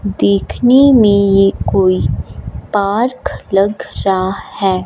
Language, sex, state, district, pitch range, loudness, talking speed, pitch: Hindi, female, Punjab, Fazilka, 195-215 Hz, -13 LUFS, 100 wpm, 200 Hz